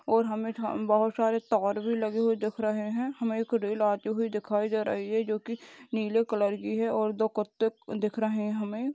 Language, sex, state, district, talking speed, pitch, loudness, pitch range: Hindi, female, Maharashtra, Aurangabad, 230 wpm, 220 Hz, -29 LUFS, 215-225 Hz